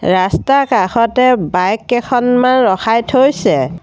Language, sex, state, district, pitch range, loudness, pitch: Assamese, female, Assam, Sonitpur, 185-255 Hz, -13 LUFS, 240 Hz